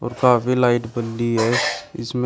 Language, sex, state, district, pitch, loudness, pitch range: Hindi, male, Uttar Pradesh, Shamli, 120 Hz, -20 LUFS, 115-125 Hz